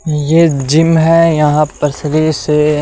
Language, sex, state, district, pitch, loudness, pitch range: Hindi, male, Haryana, Rohtak, 155 Hz, -11 LUFS, 150-160 Hz